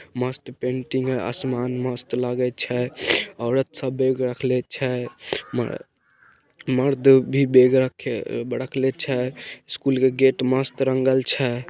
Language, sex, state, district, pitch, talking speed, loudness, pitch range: Maithili, male, Bihar, Samastipur, 130 Hz, 125 wpm, -22 LUFS, 125-130 Hz